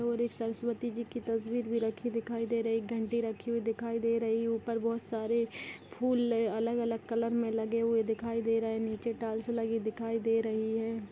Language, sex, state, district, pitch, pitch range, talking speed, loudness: Hindi, female, Chhattisgarh, Jashpur, 230 Hz, 225-235 Hz, 220 wpm, -33 LUFS